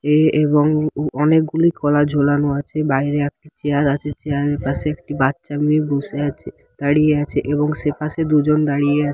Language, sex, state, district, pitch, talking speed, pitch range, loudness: Bengali, male, West Bengal, Dakshin Dinajpur, 150 Hz, 185 wpm, 145-150 Hz, -18 LUFS